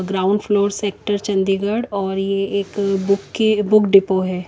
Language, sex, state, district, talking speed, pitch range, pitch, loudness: Hindi, female, Chandigarh, Chandigarh, 135 wpm, 195-205 Hz, 200 Hz, -18 LUFS